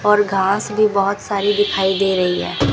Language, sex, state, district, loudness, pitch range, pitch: Hindi, female, Rajasthan, Bikaner, -17 LUFS, 195-205 Hz, 200 Hz